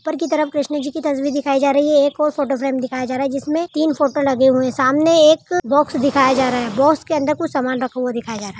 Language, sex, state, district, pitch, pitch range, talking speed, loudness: Hindi, female, Uttar Pradesh, Budaun, 285 Hz, 265-300 Hz, 300 wpm, -17 LUFS